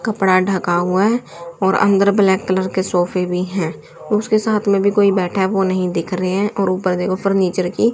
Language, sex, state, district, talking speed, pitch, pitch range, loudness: Hindi, female, Haryana, Charkhi Dadri, 220 wpm, 190 Hz, 185-200 Hz, -17 LUFS